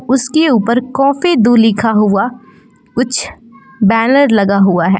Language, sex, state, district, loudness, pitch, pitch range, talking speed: Hindi, female, Jharkhand, Palamu, -12 LUFS, 235 Hz, 215-265 Hz, 130 wpm